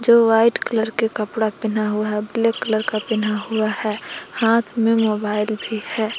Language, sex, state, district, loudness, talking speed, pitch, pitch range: Hindi, female, Jharkhand, Palamu, -20 LUFS, 185 wpm, 220 Hz, 215-225 Hz